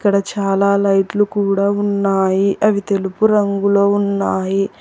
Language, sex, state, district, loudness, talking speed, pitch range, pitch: Telugu, female, Telangana, Hyderabad, -16 LUFS, 110 wpm, 195-205 Hz, 200 Hz